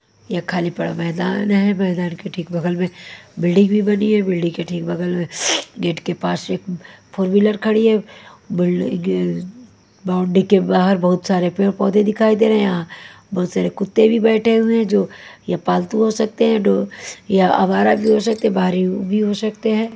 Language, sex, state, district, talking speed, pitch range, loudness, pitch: Hindi, female, Haryana, Jhajjar, 190 wpm, 175-215 Hz, -18 LUFS, 190 Hz